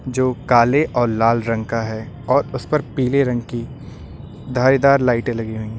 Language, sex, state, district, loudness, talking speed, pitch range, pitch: Hindi, male, Uttar Pradesh, Lucknow, -18 LUFS, 185 wpm, 115-135 Hz, 125 Hz